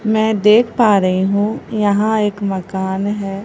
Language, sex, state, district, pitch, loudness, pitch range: Hindi, female, Bihar, Katihar, 205 Hz, -16 LUFS, 195-220 Hz